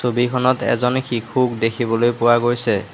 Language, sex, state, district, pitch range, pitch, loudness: Assamese, male, Assam, Hailakandi, 115-125 Hz, 120 Hz, -18 LUFS